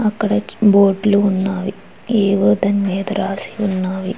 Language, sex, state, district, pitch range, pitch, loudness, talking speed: Telugu, female, Andhra Pradesh, Chittoor, 190-205 Hz, 195 Hz, -16 LUFS, 115 wpm